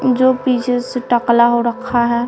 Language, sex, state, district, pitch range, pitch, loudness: Hindi, female, Bihar, Patna, 235-255 Hz, 245 Hz, -15 LUFS